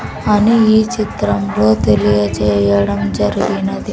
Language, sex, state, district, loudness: Telugu, female, Andhra Pradesh, Sri Satya Sai, -14 LUFS